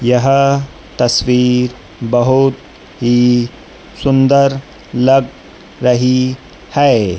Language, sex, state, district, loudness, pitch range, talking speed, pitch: Hindi, male, Madhya Pradesh, Dhar, -13 LUFS, 120-135 Hz, 65 wpm, 125 Hz